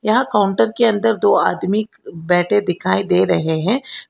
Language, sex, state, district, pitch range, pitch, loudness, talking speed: Hindi, female, Karnataka, Bangalore, 175-220 Hz, 205 Hz, -17 LUFS, 160 wpm